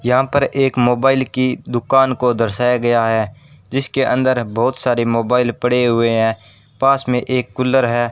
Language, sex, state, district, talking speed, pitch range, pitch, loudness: Hindi, male, Rajasthan, Bikaner, 170 wpm, 120-130 Hz, 125 Hz, -16 LUFS